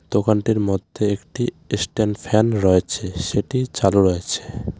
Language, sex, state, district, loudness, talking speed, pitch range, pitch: Bengali, male, West Bengal, Alipurduar, -20 LUFS, 110 wpm, 95-110 Hz, 100 Hz